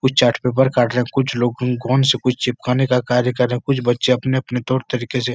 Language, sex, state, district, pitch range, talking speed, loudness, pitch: Hindi, male, Uttar Pradesh, Etah, 125-130 Hz, 290 wpm, -18 LUFS, 125 Hz